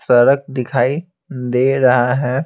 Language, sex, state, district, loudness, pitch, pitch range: Hindi, male, Bihar, Patna, -15 LUFS, 130 Hz, 125-140 Hz